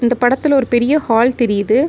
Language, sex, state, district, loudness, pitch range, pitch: Tamil, female, Tamil Nadu, Nilgiris, -14 LUFS, 235-270 Hz, 245 Hz